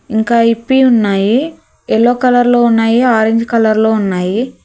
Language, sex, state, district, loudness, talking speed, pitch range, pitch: Telugu, female, Telangana, Hyderabad, -11 LUFS, 140 wpm, 220-245 Hz, 230 Hz